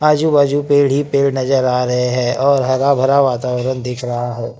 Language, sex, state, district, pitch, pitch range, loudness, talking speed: Hindi, male, Maharashtra, Gondia, 130 Hz, 125-140 Hz, -15 LUFS, 210 wpm